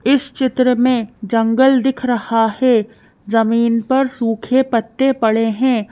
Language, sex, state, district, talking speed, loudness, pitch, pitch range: Hindi, female, Madhya Pradesh, Bhopal, 130 wpm, -16 LUFS, 240 Hz, 225-260 Hz